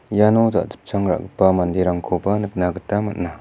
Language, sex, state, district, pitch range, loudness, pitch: Garo, male, Meghalaya, West Garo Hills, 90-105 Hz, -20 LUFS, 95 Hz